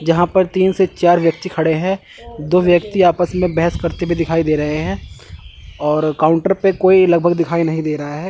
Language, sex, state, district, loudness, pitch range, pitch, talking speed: Hindi, male, Chandigarh, Chandigarh, -16 LUFS, 155-180 Hz, 170 Hz, 210 wpm